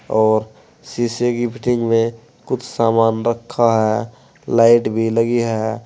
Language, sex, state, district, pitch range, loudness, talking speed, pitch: Hindi, male, Uttar Pradesh, Saharanpur, 115-120 Hz, -17 LUFS, 135 wpm, 115 Hz